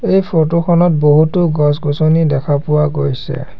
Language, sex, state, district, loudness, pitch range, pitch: Assamese, male, Assam, Sonitpur, -13 LUFS, 145-170 Hz, 155 Hz